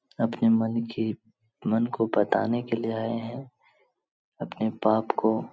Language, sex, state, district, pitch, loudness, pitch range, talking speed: Hindi, male, Bihar, Jahanabad, 115 Hz, -27 LUFS, 110-115 Hz, 150 wpm